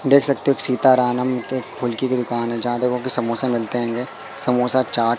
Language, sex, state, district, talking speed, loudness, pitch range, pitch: Hindi, male, Madhya Pradesh, Katni, 195 wpm, -19 LUFS, 120-130 Hz, 125 Hz